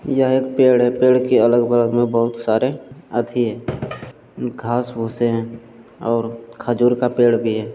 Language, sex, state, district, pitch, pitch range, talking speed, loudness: Hindi, male, Bihar, Jamui, 120 Hz, 115-125 Hz, 180 wpm, -18 LUFS